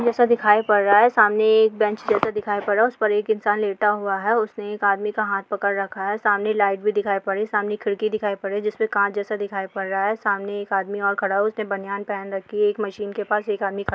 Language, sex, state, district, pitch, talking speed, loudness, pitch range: Hindi, female, Bihar, Jamui, 205 Hz, 290 wpm, -21 LUFS, 200-215 Hz